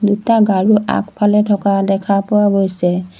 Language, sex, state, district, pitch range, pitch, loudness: Assamese, female, Assam, Sonitpur, 195-210 Hz, 205 Hz, -14 LUFS